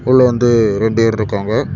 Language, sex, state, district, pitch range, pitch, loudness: Tamil, male, Tamil Nadu, Kanyakumari, 110-120 Hz, 115 Hz, -14 LUFS